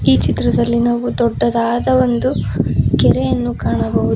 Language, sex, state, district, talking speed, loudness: Kannada, female, Karnataka, Koppal, 100 wpm, -16 LUFS